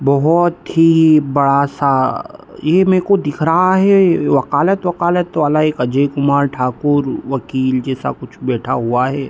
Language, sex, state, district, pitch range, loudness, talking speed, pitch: Hindi, male, Bihar, East Champaran, 135-170 Hz, -15 LUFS, 140 wpm, 145 Hz